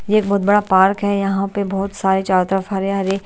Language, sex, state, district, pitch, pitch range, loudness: Hindi, male, Delhi, New Delhi, 195 Hz, 190-200 Hz, -17 LUFS